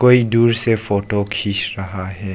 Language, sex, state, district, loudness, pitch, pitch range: Hindi, male, Arunachal Pradesh, Lower Dibang Valley, -17 LUFS, 105 Hz, 100-115 Hz